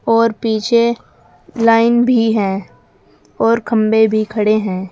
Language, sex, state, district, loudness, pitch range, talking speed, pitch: Hindi, female, Uttar Pradesh, Saharanpur, -14 LUFS, 205-230 Hz, 120 wpm, 220 Hz